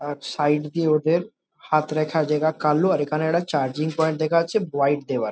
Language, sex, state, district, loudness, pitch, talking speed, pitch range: Bengali, male, West Bengal, Jhargram, -22 LUFS, 155 Hz, 190 wpm, 150-160 Hz